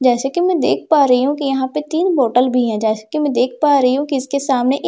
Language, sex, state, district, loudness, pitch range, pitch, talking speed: Hindi, female, Bihar, Katihar, -16 LUFS, 250-295 Hz, 270 Hz, 320 wpm